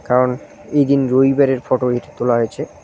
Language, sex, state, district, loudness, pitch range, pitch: Bengali, male, West Bengal, Cooch Behar, -17 LUFS, 120-135 Hz, 125 Hz